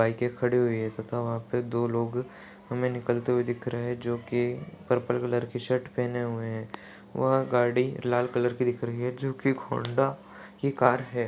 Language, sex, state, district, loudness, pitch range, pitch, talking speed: Hindi, male, Uttar Pradesh, Deoria, -28 LUFS, 120-125 Hz, 120 Hz, 190 wpm